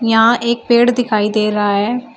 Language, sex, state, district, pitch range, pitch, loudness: Hindi, female, Uttar Pradesh, Shamli, 215-240 Hz, 230 Hz, -14 LUFS